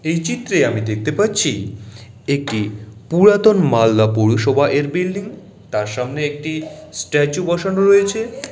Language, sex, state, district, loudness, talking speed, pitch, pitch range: Bengali, male, West Bengal, Malda, -17 LUFS, 125 wpm, 145 Hz, 110-185 Hz